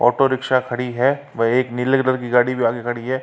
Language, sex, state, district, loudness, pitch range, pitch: Hindi, male, Uttar Pradesh, Varanasi, -19 LUFS, 120-130 Hz, 125 Hz